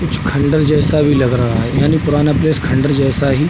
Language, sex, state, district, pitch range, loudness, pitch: Hindi, male, Uttar Pradesh, Budaun, 135-150 Hz, -13 LUFS, 145 Hz